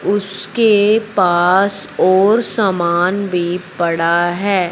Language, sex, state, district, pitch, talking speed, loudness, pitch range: Hindi, male, Punjab, Fazilka, 190 Hz, 90 wpm, -15 LUFS, 175-205 Hz